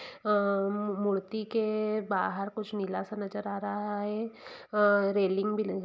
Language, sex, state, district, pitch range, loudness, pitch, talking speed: Hindi, female, Bihar, Saran, 200-215 Hz, -31 LUFS, 205 Hz, 135 wpm